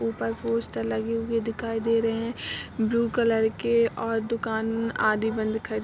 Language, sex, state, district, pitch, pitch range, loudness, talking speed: Hindi, female, Uttar Pradesh, Etah, 225 Hz, 215-230 Hz, -26 LUFS, 175 wpm